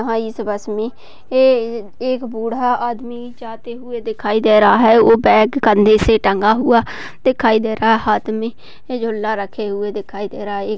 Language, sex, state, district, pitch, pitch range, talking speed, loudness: Hindi, female, Chhattisgarh, Sarguja, 225 Hz, 215-240 Hz, 180 wpm, -16 LUFS